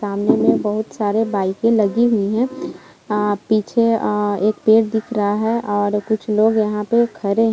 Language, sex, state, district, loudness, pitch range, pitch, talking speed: Hindi, female, Bihar, Kishanganj, -18 LUFS, 205-225 Hz, 215 Hz, 185 wpm